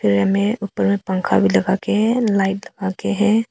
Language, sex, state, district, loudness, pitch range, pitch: Hindi, female, Arunachal Pradesh, Papum Pare, -18 LUFS, 190-215 Hz, 200 Hz